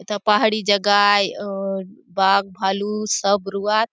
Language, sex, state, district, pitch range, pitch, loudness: Halbi, female, Chhattisgarh, Bastar, 195-210 Hz, 205 Hz, -19 LUFS